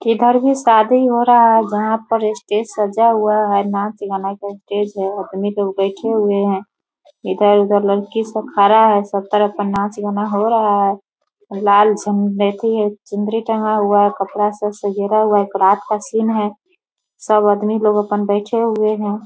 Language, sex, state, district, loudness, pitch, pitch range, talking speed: Hindi, female, Bihar, Begusarai, -16 LUFS, 210 Hz, 200-220 Hz, 180 wpm